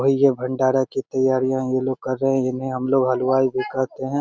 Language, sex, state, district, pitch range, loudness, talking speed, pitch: Maithili, male, Bihar, Begusarai, 130-135 Hz, -21 LUFS, 230 wpm, 130 Hz